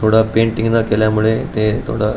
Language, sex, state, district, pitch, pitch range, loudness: Marathi, male, Goa, North and South Goa, 110 Hz, 110-115 Hz, -16 LUFS